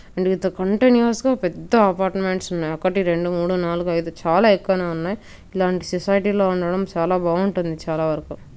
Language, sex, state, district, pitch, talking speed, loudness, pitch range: Telugu, female, Telangana, Nalgonda, 185 Hz, 155 wpm, -20 LUFS, 170-195 Hz